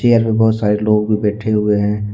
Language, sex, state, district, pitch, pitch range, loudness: Hindi, male, Jharkhand, Deoghar, 105 Hz, 105-110 Hz, -15 LUFS